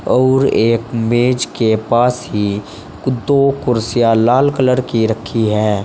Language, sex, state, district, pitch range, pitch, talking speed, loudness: Hindi, male, Uttar Pradesh, Saharanpur, 110-125 Hz, 120 Hz, 135 wpm, -15 LUFS